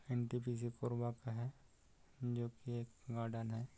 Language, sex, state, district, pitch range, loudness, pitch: Hindi, male, Chhattisgarh, Korba, 115-120 Hz, -44 LUFS, 120 Hz